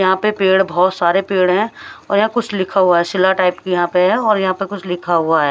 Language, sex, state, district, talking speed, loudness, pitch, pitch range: Hindi, female, Punjab, Pathankot, 285 wpm, -15 LUFS, 185 Hz, 180-195 Hz